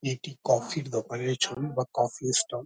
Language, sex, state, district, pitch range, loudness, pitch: Bengali, male, West Bengal, Dakshin Dinajpur, 120-135 Hz, -29 LUFS, 130 Hz